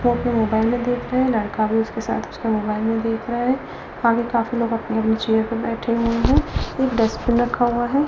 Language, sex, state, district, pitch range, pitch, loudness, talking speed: Hindi, female, Delhi, New Delhi, 225-240 Hz, 230 Hz, -21 LUFS, 225 wpm